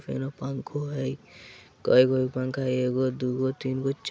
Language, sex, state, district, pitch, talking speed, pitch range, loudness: Bajjika, male, Bihar, Vaishali, 130 Hz, 160 wpm, 130-135 Hz, -27 LUFS